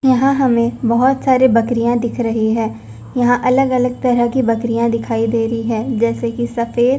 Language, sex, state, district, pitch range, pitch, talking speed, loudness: Hindi, female, Punjab, Fazilka, 230-250 Hz, 235 Hz, 180 wpm, -16 LUFS